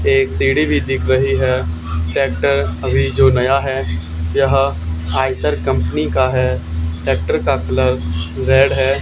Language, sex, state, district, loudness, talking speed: Hindi, male, Haryana, Charkhi Dadri, -16 LUFS, 140 wpm